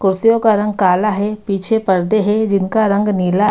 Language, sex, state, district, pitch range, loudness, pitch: Hindi, female, Bihar, Gaya, 195-215 Hz, -15 LUFS, 205 Hz